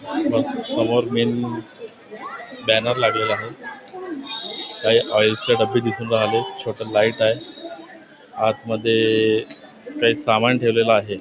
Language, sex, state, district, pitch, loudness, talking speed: Marathi, male, Maharashtra, Nagpur, 115 Hz, -20 LUFS, 100 wpm